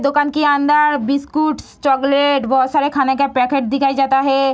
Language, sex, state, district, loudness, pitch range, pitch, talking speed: Hindi, female, Bihar, Sitamarhi, -16 LUFS, 270-290 Hz, 275 Hz, 170 wpm